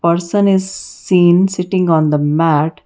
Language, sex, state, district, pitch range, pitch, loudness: English, female, Karnataka, Bangalore, 160-185 Hz, 175 Hz, -13 LUFS